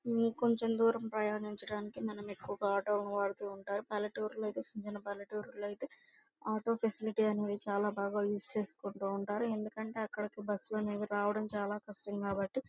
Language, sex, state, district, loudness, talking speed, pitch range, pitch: Telugu, female, Andhra Pradesh, Guntur, -37 LUFS, 155 wpm, 205-220 Hz, 210 Hz